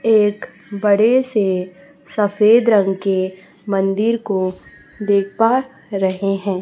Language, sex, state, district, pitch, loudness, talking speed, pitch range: Hindi, female, Chhattisgarh, Raipur, 200 Hz, -17 LUFS, 110 wpm, 195-220 Hz